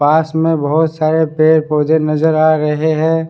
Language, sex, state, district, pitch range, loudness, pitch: Hindi, male, Bihar, Sitamarhi, 155-160 Hz, -13 LUFS, 155 Hz